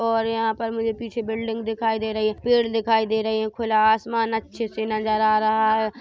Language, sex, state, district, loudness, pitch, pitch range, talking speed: Hindi, male, Chhattisgarh, Korba, -23 LUFS, 225 Hz, 220-225 Hz, 230 wpm